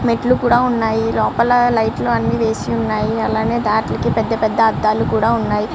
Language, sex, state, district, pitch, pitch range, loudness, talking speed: Telugu, male, Andhra Pradesh, Srikakulam, 225 Hz, 220-235 Hz, -16 LUFS, 155 wpm